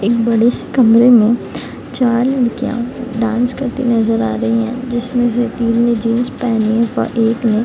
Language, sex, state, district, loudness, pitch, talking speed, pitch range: Hindi, female, Bihar, East Champaran, -15 LUFS, 235 Hz, 195 wpm, 230-245 Hz